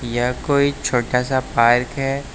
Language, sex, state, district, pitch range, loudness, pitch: Hindi, male, Uttar Pradesh, Lucknow, 120-140 Hz, -19 LUFS, 125 Hz